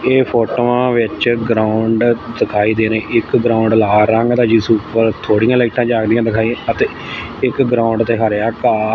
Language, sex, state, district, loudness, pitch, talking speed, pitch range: Punjabi, male, Punjab, Fazilka, -14 LUFS, 115 Hz, 155 wpm, 110-120 Hz